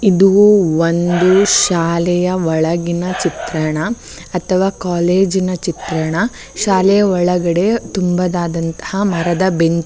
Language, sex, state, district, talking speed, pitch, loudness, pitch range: Kannada, female, Karnataka, Bellary, 90 wpm, 180 Hz, -15 LUFS, 170-190 Hz